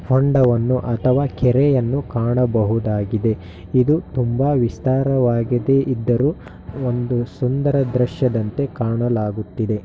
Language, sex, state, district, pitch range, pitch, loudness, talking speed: Kannada, male, Karnataka, Shimoga, 115-130 Hz, 125 Hz, -19 LUFS, 75 wpm